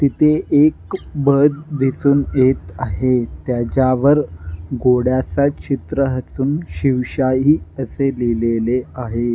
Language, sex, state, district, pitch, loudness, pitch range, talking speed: Marathi, male, Maharashtra, Nagpur, 130 Hz, -17 LUFS, 125-140 Hz, 90 wpm